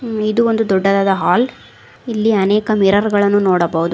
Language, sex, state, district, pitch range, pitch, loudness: Kannada, female, Karnataka, Koppal, 195-220 Hz, 205 Hz, -15 LUFS